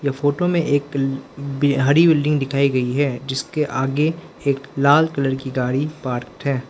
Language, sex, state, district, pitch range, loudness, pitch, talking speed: Hindi, male, Arunachal Pradesh, Lower Dibang Valley, 135-145 Hz, -20 LUFS, 140 Hz, 150 wpm